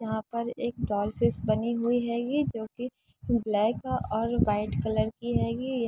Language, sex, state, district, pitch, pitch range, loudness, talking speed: Hindi, female, Uttar Pradesh, Varanasi, 235 Hz, 220-240 Hz, -29 LUFS, 165 wpm